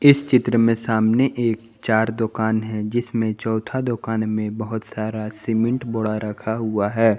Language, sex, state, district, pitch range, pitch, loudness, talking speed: Hindi, male, Jharkhand, Garhwa, 110-115 Hz, 110 Hz, -21 LUFS, 160 wpm